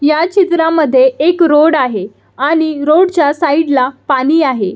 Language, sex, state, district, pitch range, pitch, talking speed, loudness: Marathi, female, Maharashtra, Solapur, 265-325 Hz, 305 Hz, 125 wpm, -11 LUFS